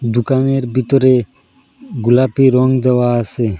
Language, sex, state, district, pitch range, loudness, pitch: Bengali, male, Assam, Hailakandi, 120-130 Hz, -14 LUFS, 130 Hz